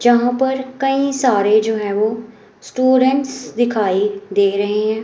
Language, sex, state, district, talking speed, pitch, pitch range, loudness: Hindi, female, Himachal Pradesh, Shimla, 145 wpm, 225 Hz, 210-260 Hz, -17 LUFS